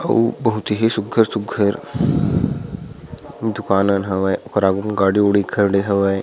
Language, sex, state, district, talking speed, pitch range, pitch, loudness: Chhattisgarhi, male, Chhattisgarh, Sarguja, 135 wpm, 100-110 Hz, 100 Hz, -18 LUFS